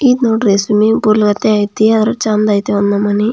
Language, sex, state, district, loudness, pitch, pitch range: Kannada, female, Karnataka, Belgaum, -12 LUFS, 215 Hz, 205-220 Hz